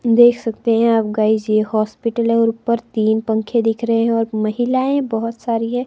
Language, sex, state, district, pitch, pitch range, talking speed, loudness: Hindi, female, Himachal Pradesh, Shimla, 230 Hz, 220-235 Hz, 205 wpm, -17 LUFS